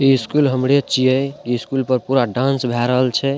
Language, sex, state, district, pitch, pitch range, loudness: Maithili, male, Bihar, Madhepura, 130 Hz, 125-135 Hz, -17 LUFS